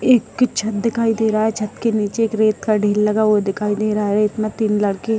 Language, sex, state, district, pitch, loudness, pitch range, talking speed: Hindi, female, Bihar, Jahanabad, 215 Hz, -18 LUFS, 210-225 Hz, 275 wpm